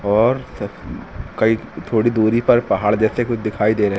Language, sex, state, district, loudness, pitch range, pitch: Hindi, male, Uttar Pradesh, Lucknow, -18 LUFS, 105-120 Hz, 110 Hz